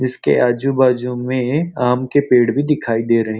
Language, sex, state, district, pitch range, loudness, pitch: Hindi, male, Chhattisgarh, Rajnandgaon, 120-135 Hz, -16 LUFS, 125 Hz